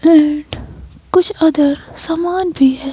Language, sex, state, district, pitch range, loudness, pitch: Hindi, female, Himachal Pradesh, Shimla, 290-345 Hz, -14 LUFS, 320 Hz